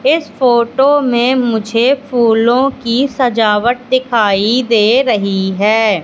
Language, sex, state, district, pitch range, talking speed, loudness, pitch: Hindi, female, Madhya Pradesh, Katni, 220-260 Hz, 110 wpm, -12 LUFS, 240 Hz